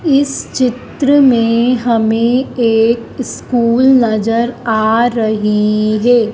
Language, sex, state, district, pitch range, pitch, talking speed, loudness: Hindi, female, Madhya Pradesh, Dhar, 225-250 Hz, 235 Hz, 105 wpm, -13 LUFS